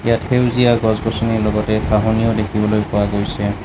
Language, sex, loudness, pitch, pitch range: Assamese, male, -17 LUFS, 110 Hz, 105-115 Hz